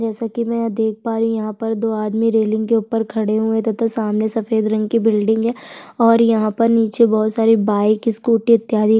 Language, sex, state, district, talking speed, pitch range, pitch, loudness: Hindi, female, Chhattisgarh, Sukma, 225 wpm, 220-230 Hz, 225 Hz, -17 LUFS